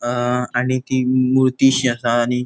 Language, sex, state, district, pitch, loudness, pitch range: Konkani, male, Goa, North and South Goa, 125 Hz, -17 LUFS, 120-130 Hz